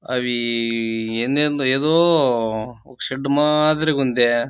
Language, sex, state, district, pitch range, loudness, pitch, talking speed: Telugu, male, Andhra Pradesh, Chittoor, 120-145 Hz, -18 LUFS, 125 Hz, 95 wpm